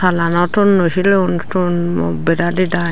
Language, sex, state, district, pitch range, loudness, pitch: Chakma, female, Tripura, Dhalai, 170-185 Hz, -15 LUFS, 175 Hz